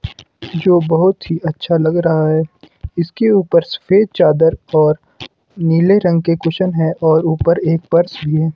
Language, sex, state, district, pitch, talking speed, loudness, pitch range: Hindi, male, Himachal Pradesh, Shimla, 165 Hz, 160 wpm, -14 LUFS, 160-175 Hz